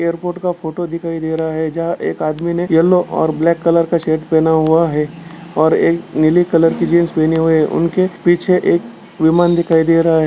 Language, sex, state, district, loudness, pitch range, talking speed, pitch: Hindi, male, Bihar, Gaya, -15 LUFS, 160-170 Hz, 215 wpm, 165 Hz